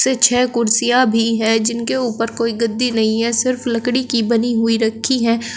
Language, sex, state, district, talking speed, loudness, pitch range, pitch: Hindi, female, Uttar Pradesh, Shamli, 195 wpm, -16 LUFS, 230-245 Hz, 235 Hz